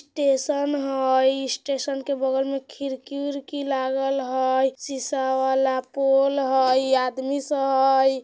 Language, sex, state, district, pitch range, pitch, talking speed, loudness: Bajjika, female, Bihar, Vaishali, 265-275 Hz, 270 Hz, 115 wpm, -23 LUFS